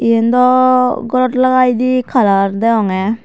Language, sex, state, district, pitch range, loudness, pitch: Chakma, female, Tripura, Dhalai, 225-255 Hz, -12 LUFS, 245 Hz